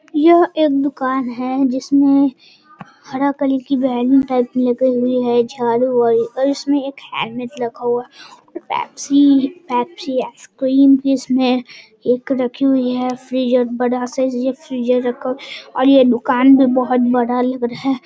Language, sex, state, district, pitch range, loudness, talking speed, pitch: Hindi, male, Bihar, Jahanabad, 250-275 Hz, -16 LUFS, 155 wpm, 260 Hz